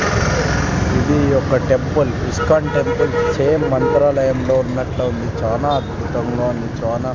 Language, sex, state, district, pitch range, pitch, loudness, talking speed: Telugu, male, Andhra Pradesh, Sri Satya Sai, 120-135 Hz, 130 Hz, -17 LUFS, 100 wpm